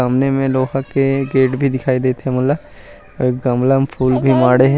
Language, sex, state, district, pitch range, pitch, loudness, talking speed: Chhattisgarhi, male, Chhattisgarh, Rajnandgaon, 130-135 Hz, 130 Hz, -16 LUFS, 215 wpm